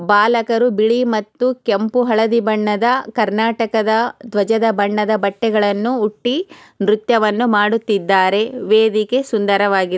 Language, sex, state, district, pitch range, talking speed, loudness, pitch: Kannada, female, Karnataka, Chamarajanagar, 210-235 Hz, 95 wpm, -16 LUFS, 220 Hz